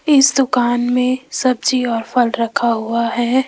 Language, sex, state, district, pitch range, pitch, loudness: Hindi, female, Rajasthan, Jaipur, 235-260 Hz, 250 Hz, -16 LUFS